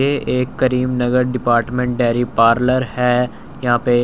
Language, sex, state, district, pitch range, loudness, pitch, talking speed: Hindi, male, Chandigarh, Chandigarh, 120-125 Hz, -17 LUFS, 125 Hz, 150 wpm